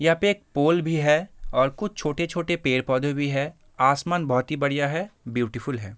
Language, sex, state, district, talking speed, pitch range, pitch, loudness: Hindi, male, Bihar, East Champaran, 190 wpm, 130-170 Hz, 145 Hz, -24 LUFS